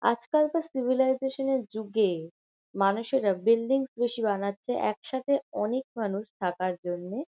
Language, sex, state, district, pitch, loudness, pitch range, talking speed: Bengali, female, West Bengal, Kolkata, 230 Hz, -28 LUFS, 200-265 Hz, 105 wpm